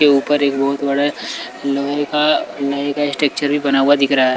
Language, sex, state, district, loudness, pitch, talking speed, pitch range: Hindi, male, Chhattisgarh, Raipur, -17 LUFS, 140 Hz, 220 wpm, 140-145 Hz